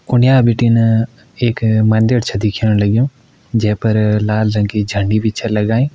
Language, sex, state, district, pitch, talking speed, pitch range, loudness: Kumaoni, male, Uttarakhand, Uttarkashi, 110 Hz, 160 wpm, 105-120 Hz, -14 LUFS